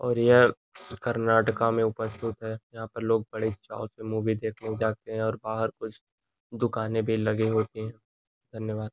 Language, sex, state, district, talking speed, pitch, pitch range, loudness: Hindi, male, Uttar Pradesh, Gorakhpur, 170 wpm, 110 Hz, 110-115 Hz, -27 LUFS